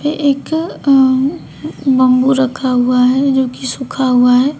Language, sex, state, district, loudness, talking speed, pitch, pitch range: Hindi, female, Uttar Pradesh, Shamli, -13 LUFS, 145 wpm, 265 Hz, 255-275 Hz